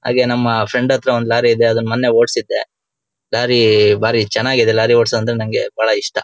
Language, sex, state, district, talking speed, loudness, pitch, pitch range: Kannada, male, Karnataka, Shimoga, 190 wpm, -15 LUFS, 115 Hz, 110-120 Hz